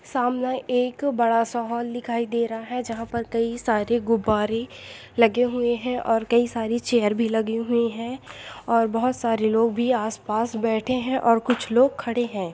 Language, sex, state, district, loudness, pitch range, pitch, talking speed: Hindi, female, Bihar, Jamui, -23 LUFS, 225-245 Hz, 235 Hz, 185 wpm